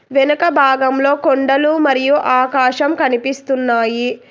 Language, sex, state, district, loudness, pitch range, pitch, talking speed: Telugu, female, Telangana, Hyderabad, -14 LUFS, 255-285 Hz, 270 Hz, 85 wpm